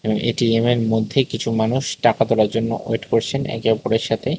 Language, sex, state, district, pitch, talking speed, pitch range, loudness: Bengali, male, Tripura, West Tripura, 115 Hz, 165 wpm, 110-120 Hz, -20 LUFS